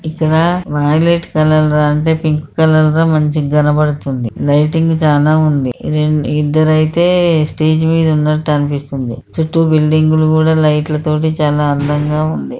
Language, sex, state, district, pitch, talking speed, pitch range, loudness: Telugu, female, Andhra Pradesh, Krishna, 155 Hz, 130 wpm, 150-160 Hz, -13 LUFS